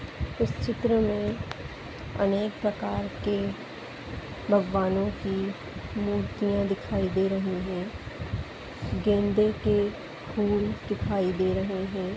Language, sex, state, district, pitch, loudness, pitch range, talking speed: Hindi, female, Goa, North and South Goa, 195 Hz, -28 LUFS, 185-205 Hz, 100 wpm